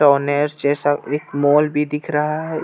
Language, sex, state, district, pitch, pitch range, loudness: Hindi, male, Jharkhand, Ranchi, 150 Hz, 145-150 Hz, -19 LUFS